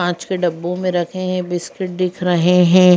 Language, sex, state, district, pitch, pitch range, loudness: Hindi, female, Madhya Pradesh, Bhopal, 180 Hz, 175-185 Hz, -18 LUFS